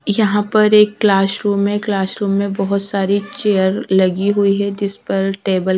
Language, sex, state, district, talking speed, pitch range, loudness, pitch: Hindi, female, Haryana, Rohtak, 175 wpm, 195-205 Hz, -16 LUFS, 200 Hz